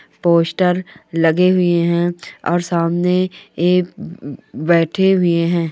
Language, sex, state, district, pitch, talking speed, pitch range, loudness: Hindi, female, Andhra Pradesh, Guntur, 175 Hz, 105 wpm, 170-180 Hz, -16 LUFS